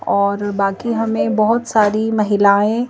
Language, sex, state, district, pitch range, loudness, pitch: Hindi, female, Madhya Pradesh, Bhopal, 205-225 Hz, -16 LUFS, 215 Hz